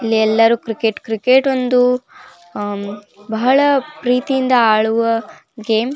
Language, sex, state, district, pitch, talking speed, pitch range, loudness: Kannada, female, Karnataka, Belgaum, 230 Hz, 120 wpm, 220-255 Hz, -16 LUFS